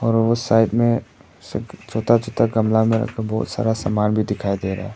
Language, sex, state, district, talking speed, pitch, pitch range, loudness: Hindi, male, Arunachal Pradesh, Papum Pare, 180 wpm, 110 Hz, 105-115 Hz, -20 LUFS